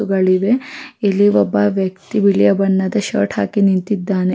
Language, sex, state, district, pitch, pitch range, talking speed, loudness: Kannada, female, Karnataka, Raichur, 195 Hz, 185-205 Hz, 125 wpm, -16 LUFS